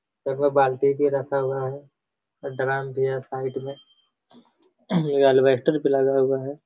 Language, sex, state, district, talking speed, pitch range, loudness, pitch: Hindi, male, Bihar, Supaul, 160 wpm, 135-145 Hz, -23 LUFS, 135 Hz